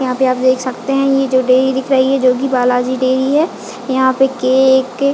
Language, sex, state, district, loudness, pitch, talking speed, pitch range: Hindi, female, Chhattisgarh, Raigarh, -14 LUFS, 260 Hz, 245 wpm, 255-270 Hz